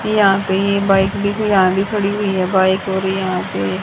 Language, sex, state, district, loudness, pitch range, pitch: Hindi, female, Haryana, Jhajjar, -16 LUFS, 190-200 Hz, 195 Hz